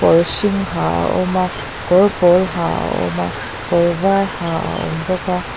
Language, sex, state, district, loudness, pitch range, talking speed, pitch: Mizo, female, Mizoram, Aizawl, -16 LUFS, 115-185 Hz, 205 wpm, 175 Hz